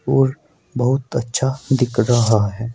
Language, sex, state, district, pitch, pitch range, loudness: Hindi, male, Uttar Pradesh, Saharanpur, 125 Hz, 120-135 Hz, -18 LUFS